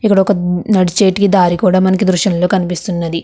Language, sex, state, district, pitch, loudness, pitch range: Telugu, female, Andhra Pradesh, Krishna, 185 Hz, -13 LUFS, 175-195 Hz